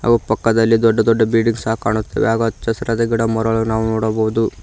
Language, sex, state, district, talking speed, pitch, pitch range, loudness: Kannada, male, Karnataka, Koppal, 170 wpm, 115 Hz, 110-115 Hz, -17 LUFS